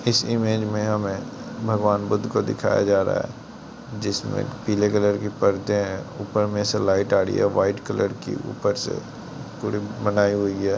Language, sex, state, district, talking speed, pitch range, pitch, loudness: Hindi, male, Bihar, Jamui, 185 wpm, 100-110 Hz, 105 Hz, -23 LUFS